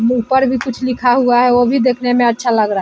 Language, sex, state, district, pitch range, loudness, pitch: Hindi, female, Bihar, Vaishali, 240-255 Hz, -14 LUFS, 245 Hz